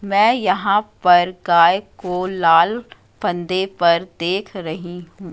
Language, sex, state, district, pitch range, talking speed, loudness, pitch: Hindi, female, Madhya Pradesh, Katni, 175-200 Hz, 125 wpm, -17 LUFS, 180 Hz